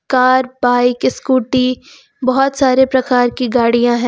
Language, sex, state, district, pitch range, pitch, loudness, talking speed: Hindi, female, Uttar Pradesh, Lucknow, 245-260 Hz, 255 Hz, -14 LUFS, 130 wpm